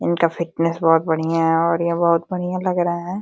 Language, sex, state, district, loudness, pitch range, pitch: Hindi, female, Uttar Pradesh, Deoria, -19 LUFS, 165-175 Hz, 170 Hz